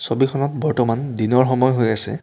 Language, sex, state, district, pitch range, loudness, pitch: Assamese, male, Assam, Kamrup Metropolitan, 115-135 Hz, -18 LUFS, 130 Hz